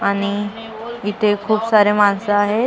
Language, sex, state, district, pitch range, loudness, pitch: Marathi, female, Maharashtra, Mumbai Suburban, 205-220 Hz, -17 LUFS, 210 Hz